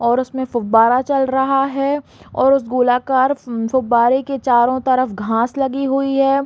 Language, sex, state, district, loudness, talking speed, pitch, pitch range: Hindi, female, Chhattisgarh, Balrampur, -17 LUFS, 160 wpm, 260 Hz, 240-270 Hz